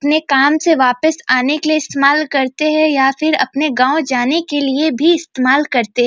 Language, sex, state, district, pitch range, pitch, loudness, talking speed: Hindi, female, Bihar, Bhagalpur, 265-310 Hz, 290 Hz, -14 LUFS, 220 wpm